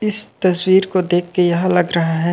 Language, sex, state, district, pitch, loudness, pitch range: Chhattisgarhi, male, Chhattisgarh, Raigarh, 180 Hz, -16 LUFS, 175-185 Hz